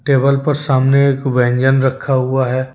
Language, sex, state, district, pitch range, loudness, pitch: Hindi, male, Jharkhand, Deoghar, 130-140 Hz, -14 LUFS, 135 Hz